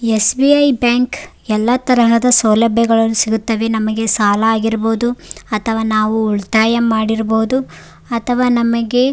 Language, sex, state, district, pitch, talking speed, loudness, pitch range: Kannada, female, Karnataka, Raichur, 225 Hz, 105 wpm, -14 LUFS, 220-240 Hz